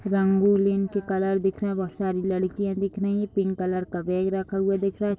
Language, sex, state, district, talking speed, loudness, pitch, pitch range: Hindi, female, Uttar Pradesh, Budaun, 230 wpm, -25 LUFS, 195 Hz, 190-200 Hz